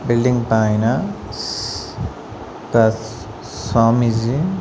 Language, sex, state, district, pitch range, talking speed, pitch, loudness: Telugu, male, Andhra Pradesh, Sri Satya Sai, 110-120 Hz, 65 wpm, 115 Hz, -19 LUFS